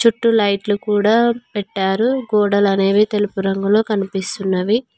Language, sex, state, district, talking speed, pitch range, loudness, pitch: Telugu, female, Telangana, Mahabubabad, 110 wpm, 195-225 Hz, -17 LUFS, 205 Hz